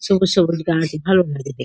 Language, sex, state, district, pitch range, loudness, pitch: Bengali, female, West Bengal, Kolkata, 155-190 Hz, -18 LUFS, 170 Hz